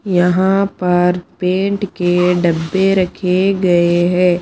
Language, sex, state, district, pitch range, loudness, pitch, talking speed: Hindi, female, Punjab, Pathankot, 175-190 Hz, -15 LUFS, 180 Hz, 110 wpm